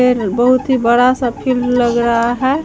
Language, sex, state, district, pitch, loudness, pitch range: Hindi, female, Bihar, Katihar, 245 Hz, -14 LUFS, 235-255 Hz